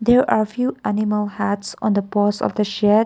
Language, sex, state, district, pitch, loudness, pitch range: English, female, Nagaland, Kohima, 210 Hz, -20 LUFS, 205-220 Hz